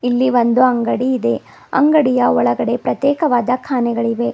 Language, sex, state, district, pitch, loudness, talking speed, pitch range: Kannada, female, Karnataka, Bidar, 250 Hz, -16 LUFS, 110 wpm, 240-260 Hz